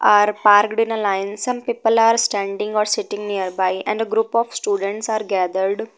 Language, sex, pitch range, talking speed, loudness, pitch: English, female, 200-225 Hz, 190 wpm, -19 LUFS, 210 Hz